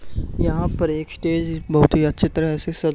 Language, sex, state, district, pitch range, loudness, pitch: Hindi, male, Haryana, Charkhi Dadri, 155-165 Hz, -21 LUFS, 160 Hz